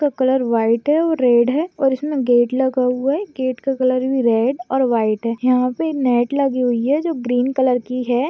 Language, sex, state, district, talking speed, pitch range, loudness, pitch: Hindi, female, Maharashtra, Pune, 225 wpm, 245-275 Hz, -18 LUFS, 255 Hz